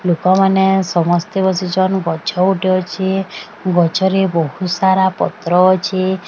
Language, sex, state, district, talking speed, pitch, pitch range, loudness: Odia, female, Odisha, Sambalpur, 95 wpm, 185 Hz, 180-190 Hz, -15 LUFS